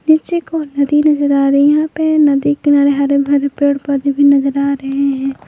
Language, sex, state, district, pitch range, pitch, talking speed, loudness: Hindi, female, Jharkhand, Palamu, 280-295 Hz, 285 Hz, 220 wpm, -13 LUFS